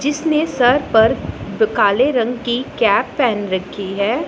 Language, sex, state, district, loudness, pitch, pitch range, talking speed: Hindi, female, Punjab, Pathankot, -17 LUFS, 240 Hz, 220-275 Hz, 155 wpm